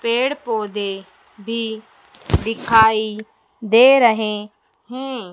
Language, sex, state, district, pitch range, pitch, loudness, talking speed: Hindi, female, Madhya Pradesh, Dhar, 215-235 Hz, 220 Hz, -18 LUFS, 65 wpm